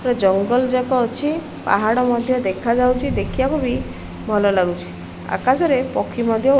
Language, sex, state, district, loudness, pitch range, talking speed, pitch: Odia, female, Odisha, Malkangiri, -19 LUFS, 200-255 Hz, 135 wpm, 245 Hz